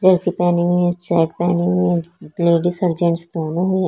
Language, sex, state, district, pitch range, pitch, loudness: Hindi, female, Chhattisgarh, Korba, 170-180 Hz, 175 Hz, -18 LUFS